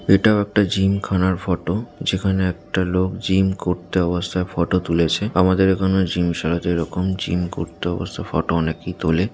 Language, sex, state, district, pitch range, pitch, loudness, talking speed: Bengali, male, West Bengal, Jalpaiguri, 85-95 Hz, 90 Hz, -20 LUFS, 150 wpm